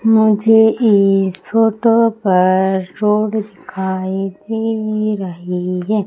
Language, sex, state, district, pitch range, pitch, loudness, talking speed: Hindi, female, Madhya Pradesh, Umaria, 190-220 Hz, 210 Hz, -15 LUFS, 90 wpm